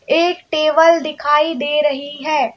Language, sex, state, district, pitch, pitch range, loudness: Hindi, female, Madhya Pradesh, Bhopal, 305 Hz, 295-325 Hz, -16 LUFS